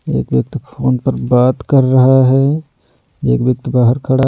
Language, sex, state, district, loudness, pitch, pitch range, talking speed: Hindi, male, Delhi, New Delhi, -13 LUFS, 130 Hz, 125-135 Hz, 170 wpm